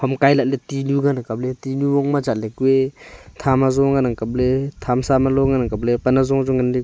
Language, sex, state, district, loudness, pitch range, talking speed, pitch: Wancho, male, Arunachal Pradesh, Longding, -19 LUFS, 125-135 Hz, 210 wpm, 135 Hz